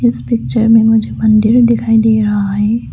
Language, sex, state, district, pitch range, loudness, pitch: Hindi, female, Arunachal Pradesh, Lower Dibang Valley, 215-230 Hz, -11 LUFS, 225 Hz